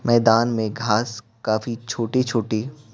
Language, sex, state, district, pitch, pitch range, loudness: Hindi, male, Bihar, Patna, 115 Hz, 110-120 Hz, -22 LUFS